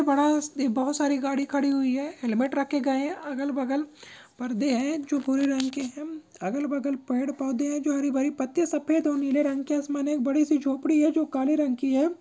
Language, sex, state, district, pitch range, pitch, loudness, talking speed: Maithili, female, Bihar, Begusarai, 270-295 Hz, 280 Hz, -26 LUFS, 225 wpm